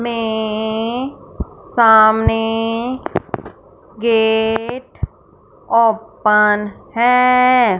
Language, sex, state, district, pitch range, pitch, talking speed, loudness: Hindi, female, Punjab, Fazilka, 220-250 Hz, 225 Hz, 40 wpm, -15 LUFS